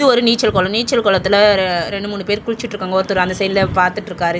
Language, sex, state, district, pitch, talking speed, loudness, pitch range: Tamil, male, Tamil Nadu, Chennai, 200 Hz, 220 wpm, -16 LUFS, 185-210 Hz